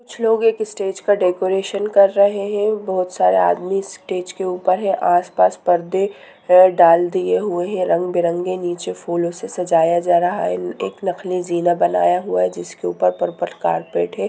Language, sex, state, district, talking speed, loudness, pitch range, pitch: Hindi, female, Bihar, Sitamarhi, 170 wpm, -18 LUFS, 170-195 Hz, 180 Hz